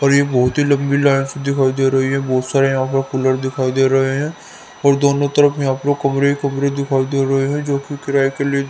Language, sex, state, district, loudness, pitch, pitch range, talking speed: Hindi, male, Haryana, Rohtak, -17 LUFS, 140 Hz, 135-140 Hz, 250 wpm